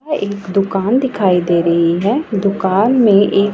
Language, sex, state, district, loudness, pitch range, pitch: Hindi, female, Punjab, Pathankot, -14 LUFS, 190-215 Hz, 200 Hz